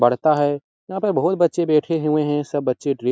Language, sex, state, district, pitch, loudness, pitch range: Hindi, male, Bihar, Araria, 150 Hz, -20 LUFS, 140-165 Hz